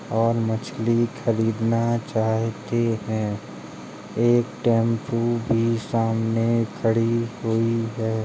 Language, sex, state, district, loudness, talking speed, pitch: Hindi, male, Uttar Pradesh, Jalaun, -23 LUFS, 85 wpm, 115 Hz